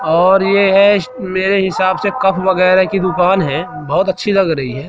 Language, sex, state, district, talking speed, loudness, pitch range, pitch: Hindi, male, Madhya Pradesh, Katni, 195 wpm, -13 LUFS, 180-195 Hz, 190 Hz